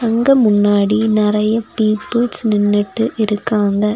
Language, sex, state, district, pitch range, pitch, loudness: Tamil, female, Tamil Nadu, Nilgiris, 205-225 Hz, 215 Hz, -15 LUFS